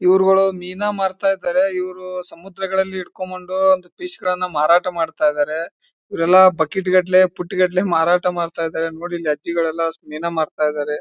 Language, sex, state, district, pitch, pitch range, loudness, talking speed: Kannada, male, Karnataka, Bijapur, 180 Hz, 165-190 Hz, -19 LUFS, 115 wpm